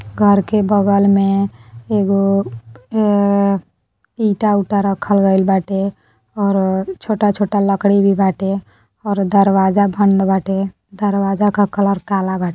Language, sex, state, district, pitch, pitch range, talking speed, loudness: Bhojpuri, female, Uttar Pradesh, Deoria, 200 Hz, 195-205 Hz, 120 wpm, -16 LUFS